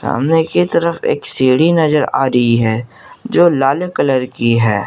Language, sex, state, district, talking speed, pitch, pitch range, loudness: Hindi, male, Jharkhand, Garhwa, 170 wpm, 135 Hz, 115-160 Hz, -14 LUFS